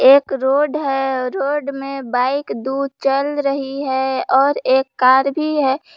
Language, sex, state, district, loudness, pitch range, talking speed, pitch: Hindi, female, Jharkhand, Palamu, -17 LUFS, 265-280 Hz, 150 wpm, 270 Hz